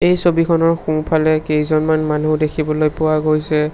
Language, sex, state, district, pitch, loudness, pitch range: Assamese, male, Assam, Sonitpur, 155 Hz, -16 LUFS, 155-160 Hz